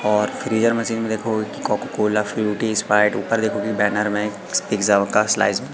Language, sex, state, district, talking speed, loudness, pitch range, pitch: Hindi, male, Madhya Pradesh, Katni, 175 wpm, -20 LUFS, 105-110 Hz, 105 Hz